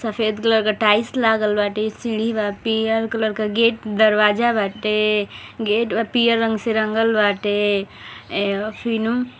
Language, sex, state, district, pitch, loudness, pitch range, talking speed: Bhojpuri, female, Uttar Pradesh, Gorakhpur, 220 Hz, -19 LUFS, 210-225 Hz, 155 wpm